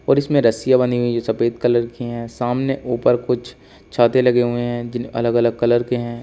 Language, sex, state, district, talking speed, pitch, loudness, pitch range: Hindi, male, Uttar Pradesh, Shamli, 220 wpm, 120 Hz, -19 LUFS, 120-125 Hz